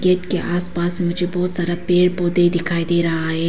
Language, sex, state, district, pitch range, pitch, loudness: Hindi, female, Arunachal Pradesh, Papum Pare, 170-180 Hz, 175 Hz, -17 LUFS